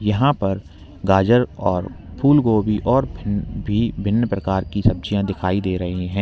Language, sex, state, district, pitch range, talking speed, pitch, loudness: Hindi, male, Uttar Pradesh, Lalitpur, 95-110 Hz, 145 wpm, 100 Hz, -20 LUFS